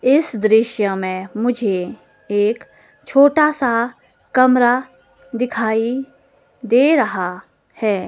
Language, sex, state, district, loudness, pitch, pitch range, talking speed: Hindi, female, Himachal Pradesh, Shimla, -17 LUFS, 230 Hz, 205-255 Hz, 90 wpm